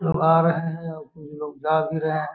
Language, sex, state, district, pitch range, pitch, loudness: Magahi, male, Bihar, Gaya, 155-165 Hz, 160 Hz, -22 LUFS